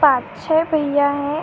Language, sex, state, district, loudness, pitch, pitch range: Hindi, female, Uttar Pradesh, Ghazipur, -18 LUFS, 290 Hz, 285-315 Hz